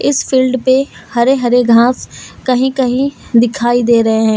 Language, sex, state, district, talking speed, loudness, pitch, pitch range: Hindi, female, Jharkhand, Deoghar, 165 wpm, -12 LUFS, 245 Hz, 235-260 Hz